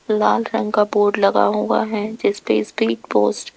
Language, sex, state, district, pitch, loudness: Hindi, female, Rajasthan, Jaipur, 205 Hz, -18 LUFS